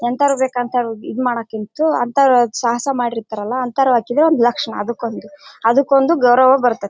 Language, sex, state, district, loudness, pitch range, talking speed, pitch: Kannada, female, Karnataka, Bellary, -16 LUFS, 235-275 Hz, 130 wpm, 245 Hz